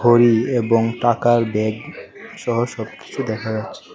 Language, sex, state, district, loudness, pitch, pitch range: Bengali, male, Tripura, West Tripura, -19 LUFS, 115 Hz, 110-120 Hz